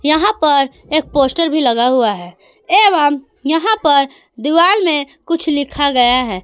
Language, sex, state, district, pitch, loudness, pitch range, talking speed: Hindi, female, Jharkhand, Ranchi, 295 Hz, -13 LUFS, 260-330 Hz, 160 wpm